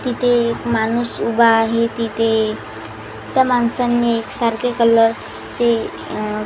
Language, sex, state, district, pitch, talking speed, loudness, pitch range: Marathi, female, Maharashtra, Washim, 230 Hz, 110 wpm, -17 LUFS, 220-240 Hz